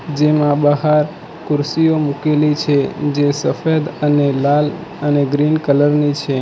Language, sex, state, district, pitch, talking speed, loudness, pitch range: Gujarati, male, Gujarat, Valsad, 150 Hz, 130 wpm, -16 LUFS, 145-150 Hz